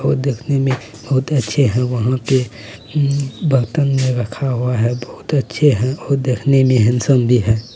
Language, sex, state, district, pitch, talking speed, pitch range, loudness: Maithili, male, Bihar, Araria, 130 Hz, 185 wpm, 120-140 Hz, -17 LUFS